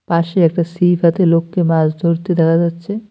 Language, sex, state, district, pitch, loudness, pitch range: Bengali, male, West Bengal, Cooch Behar, 170 Hz, -15 LUFS, 165-175 Hz